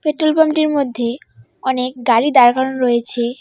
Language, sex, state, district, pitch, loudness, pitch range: Bengali, female, West Bengal, Cooch Behar, 255 Hz, -15 LUFS, 240-300 Hz